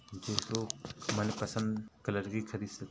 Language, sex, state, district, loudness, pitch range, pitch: Hindi, male, Chhattisgarh, Rajnandgaon, -36 LUFS, 105-110 Hz, 110 Hz